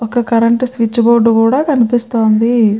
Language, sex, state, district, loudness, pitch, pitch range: Telugu, female, Andhra Pradesh, Chittoor, -12 LUFS, 230 Hz, 230-240 Hz